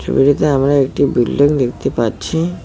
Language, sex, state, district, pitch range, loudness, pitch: Bengali, male, West Bengal, Cooch Behar, 135-150 Hz, -15 LUFS, 140 Hz